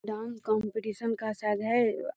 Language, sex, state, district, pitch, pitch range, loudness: Magahi, female, Bihar, Gaya, 220 Hz, 215-230 Hz, -30 LUFS